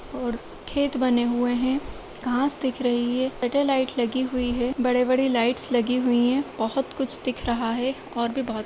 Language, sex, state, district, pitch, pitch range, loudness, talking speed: Hindi, female, Uttar Pradesh, Jyotiba Phule Nagar, 250 Hz, 240-265 Hz, -23 LUFS, 195 wpm